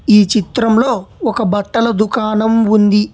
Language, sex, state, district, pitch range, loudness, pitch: Telugu, male, Telangana, Hyderabad, 210-230 Hz, -13 LUFS, 220 Hz